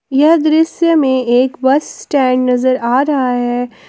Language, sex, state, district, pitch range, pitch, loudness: Hindi, female, Jharkhand, Palamu, 250-305 Hz, 260 Hz, -13 LUFS